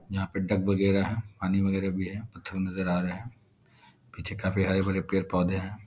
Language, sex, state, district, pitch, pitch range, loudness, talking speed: Hindi, male, Bihar, Darbhanga, 95 Hz, 95-100 Hz, -29 LUFS, 195 wpm